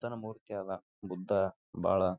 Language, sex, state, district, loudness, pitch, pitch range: Kannada, male, Karnataka, Raichur, -36 LUFS, 95 Hz, 95-110 Hz